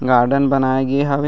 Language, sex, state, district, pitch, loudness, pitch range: Chhattisgarhi, male, Chhattisgarh, Raigarh, 135 Hz, -16 LUFS, 130-140 Hz